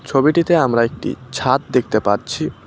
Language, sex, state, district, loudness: Bengali, male, West Bengal, Cooch Behar, -17 LUFS